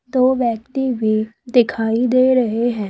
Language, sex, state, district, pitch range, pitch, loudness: Hindi, female, Uttar Pradesh, Saharanpur, 225-255 Hz, 240 Hz, -17 LUFS